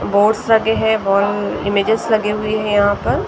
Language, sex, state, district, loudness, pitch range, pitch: Hindi, female, Maharashtra, Gondia, -16 LUFS, 205-220 Hz, 210 Hz